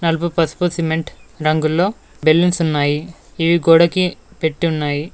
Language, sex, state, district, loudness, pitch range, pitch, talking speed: Telugu, male, Telangana, Mahabubabad, -17 LUFS, 155-170 Hz, 165 Hz, 115 wpm